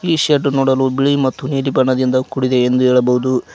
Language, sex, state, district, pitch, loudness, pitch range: Kannada, male, Karnataka, Koppal, 130 Hz, -15 LUFS, 130-140 Hz